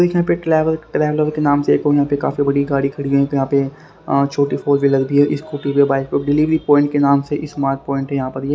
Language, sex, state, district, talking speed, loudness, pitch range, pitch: Hindi, male, Haryana, Rohtak, 265 wpm, -17 LUFS, 140-150 Hz, 140 Hz